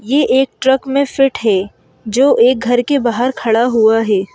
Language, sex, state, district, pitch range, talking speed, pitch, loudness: Hindi, female, Madhya Pradesh, Bhopal, 220-265 Hz, 195 wpm, 245 Hz, -13 LUFS